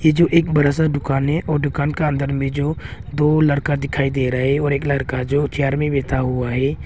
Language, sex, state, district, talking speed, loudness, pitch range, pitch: Hindi, male, Arunachal Pradesh, Longding, 245 wpm, -19 LUFS, 135-150 Hz, 140 Hz